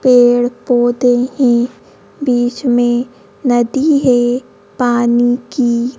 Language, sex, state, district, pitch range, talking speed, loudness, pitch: Hindi, female, Madhya Pradesh, Bhopal, 240-255 Hz, 90 wpm, -14 LUFS, 245 Hz